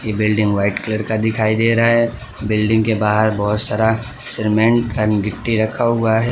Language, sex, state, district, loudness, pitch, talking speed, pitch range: Hindi, male, Gujarat, Valsad, -17 LUFS, 110 Hz, 190 wpm, 105-115 Hz